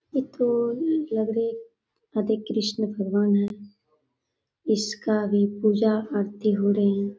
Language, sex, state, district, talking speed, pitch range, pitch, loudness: Hindi, female, Bihar, Saharsa, 115 wpm, 200-225 Hz, 210 Hz, -25 LUFS